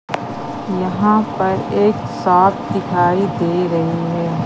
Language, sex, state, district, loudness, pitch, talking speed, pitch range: Hindi, female, Madhya Pradesh, Katni, -17 LUFS, 180 Hz, 110 wpm, 170-190 Hz